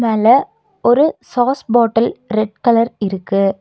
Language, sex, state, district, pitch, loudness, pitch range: Tamil, female, Tamil Nadu, Nilgiris, 230 Hz, -15 LUFS, 215-245 Hz